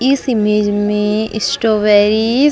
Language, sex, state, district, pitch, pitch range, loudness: Hindi, female, Chhattisgarh, Sukma, 215 Hz, 210-230 Hz, -14 LUFS